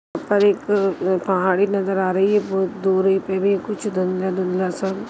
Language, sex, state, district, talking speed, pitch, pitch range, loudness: Hindi, female, Chhattisgarh, Rajnandgaon, 165 wpm, 195 Hz, 185-200 Hz, -20 LUFS